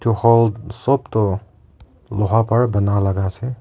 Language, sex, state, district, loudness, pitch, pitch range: Nagamese, male, Nagaland, Kohima, -18 LUFS, 110 Hz, 100-115 Hz